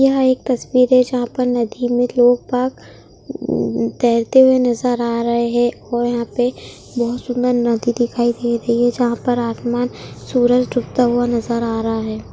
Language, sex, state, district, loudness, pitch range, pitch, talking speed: Hindi, female, West Bengal, Kolkata, -17 LUFS, 235-250 Hz, 240 Hz, 165 wpm